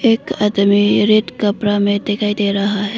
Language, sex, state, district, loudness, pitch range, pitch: Hindi, female, Arunachal Pradesh, Lower Dibang Valley, -15 LUFS, 200-210 Hz, 205 Hz